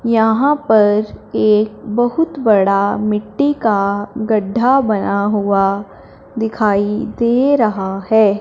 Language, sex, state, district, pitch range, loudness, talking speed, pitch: Hindi, male, Punjab, Fazilka, 205-235 Hz, -15 LUFS, 100 wpm, 215 Hz